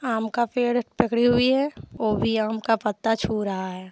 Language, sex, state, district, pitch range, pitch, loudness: Hindi, female, Jharkhand, Deoghar, 215-245 Hz, 225 Hz, -24 LUFS